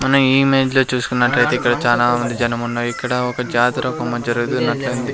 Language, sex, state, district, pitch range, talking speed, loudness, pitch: Telugu, male, Andhra Pradesh, Sri Satya Sai, 120-130 Hz, 185 wpm, -17 LUFS, 125 Hz